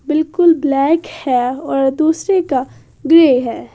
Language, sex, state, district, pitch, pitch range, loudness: Hindi, female, Haryana, Jhajjar, 300 Hz, 265-325 Hz, -14 LUFS